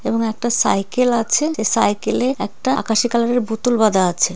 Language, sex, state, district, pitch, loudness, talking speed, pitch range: Bengali, female, West Bengal, Jalpaiguri, 230 Hz, -18 LUFS, 165 wpm, 220-245 Hz